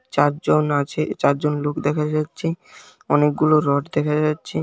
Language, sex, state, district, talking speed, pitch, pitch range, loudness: Bengali, male, West Bengal, Jhargram, 130 wpm, 150 Hz, 145-155 Hz, -20 LUFS